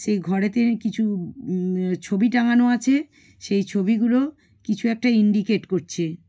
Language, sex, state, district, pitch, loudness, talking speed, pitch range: Bengali, female, West Bengal, Malda, 210 Hz, -22 LUFS, 145 wpm, 190-240 Hz